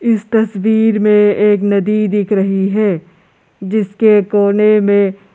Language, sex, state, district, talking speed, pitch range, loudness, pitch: Hindi, male, Arunachal Pradesh, Lower Dibang Valley, 125 wpm, 200-215 Hz, -13 LUFS, 205 Hz